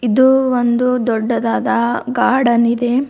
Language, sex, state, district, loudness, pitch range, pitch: Kannada, female, Karnataka, Bidar, -15 LUFS, 235-250 Hz, 245 Hz